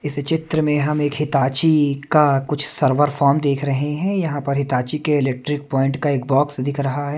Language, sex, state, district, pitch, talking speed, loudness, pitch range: Hindi, male, Haryana, Charkhi Dadri, 145 Hz, 210 wpm, -19 LUFS, 140-150 Hz